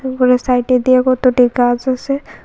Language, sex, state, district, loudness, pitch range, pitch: Bengali, female, Tripura, West Tripura, -14 LUFS, 250-255 Hz, 255 Hz